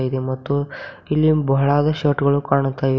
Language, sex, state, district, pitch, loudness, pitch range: Kannada, female, Karnataka, Bidar, 140 Hz, -19 LUFS, 135-145 Hz